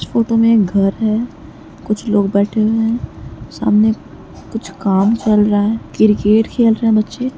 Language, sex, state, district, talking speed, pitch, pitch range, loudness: Hindi, female, Uttar Pradesh, Muzaffarnagar, 180 wpm, 215 Hz, 205-225 Hz, -15 LUFS